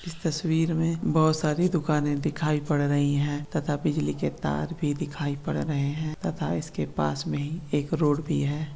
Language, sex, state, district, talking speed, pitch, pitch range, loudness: Marwari, female, Rajasthan, Nagaur, 180 wpm, 150 Hz, 145-160 Hz, -27 LUFS